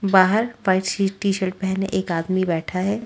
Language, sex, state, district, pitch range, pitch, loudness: Hindi, female, Haryana, Rohtak, 185-200 Hz, 190 Hz, -21 LUFS